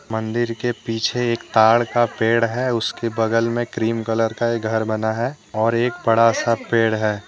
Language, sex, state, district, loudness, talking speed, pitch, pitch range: Hindi, male, Jharkhand, Deoghar, -20 LUFS, 200 wpm, 115 Hz, 110-120 Hz